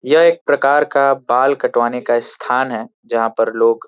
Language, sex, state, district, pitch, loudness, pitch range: Hindi, male, Uttar Pradesh, Varanasi, 125 Hz, -16 LUFS, 115-140 Hz